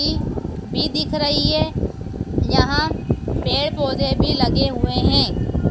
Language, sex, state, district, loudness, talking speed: Hindi, female, Madhya Pradesh, Dhar, -20 LUFS, 105 wpm